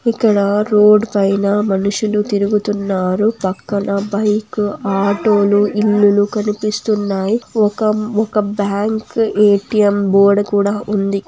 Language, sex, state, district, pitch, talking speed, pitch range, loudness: Telugu, female, Andhra Pradesh, Anantapur, 205 Hz, 85 wpm, 200-210 Hz, -15 LUFS